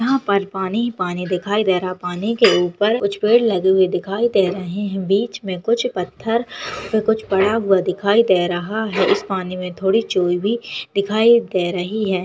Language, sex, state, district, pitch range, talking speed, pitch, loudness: Hindi, female, Uttarakhand, Uttarkashi, 185-220 Hz, 200 wpm, 200 Hz, -19 LUFS